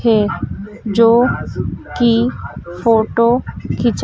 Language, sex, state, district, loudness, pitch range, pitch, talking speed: Hindi, female, Madhya Pradesh, Dhar, -16 LUFS, 220-235 Hz, 230 Hz, 75 wpm